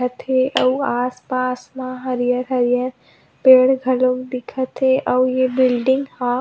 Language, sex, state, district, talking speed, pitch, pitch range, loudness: Chhattisgarhi, female, Chhattisgarh, Rajnandgaon, 160 wpm, 255 Hz, 250-260 Hz, -18 LUFS